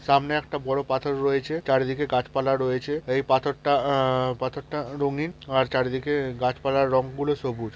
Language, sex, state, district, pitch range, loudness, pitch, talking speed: Bengali, male, West Bengal, Purulia, 130-145 Hz, -25 LUFS, 135 Hz, 145 wpm